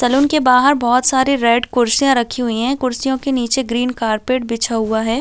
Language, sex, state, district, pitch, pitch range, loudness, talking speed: Hindi, female, Chhattisgarh, Balrampur, 250 Hz, 235-265 Hz, -16 LUFS, 205 wpm